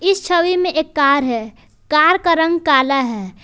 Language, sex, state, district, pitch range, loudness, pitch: Hindi, female, Jharkhand, Palamu, 270-345 Hz, -15 LUFS, 310 Hz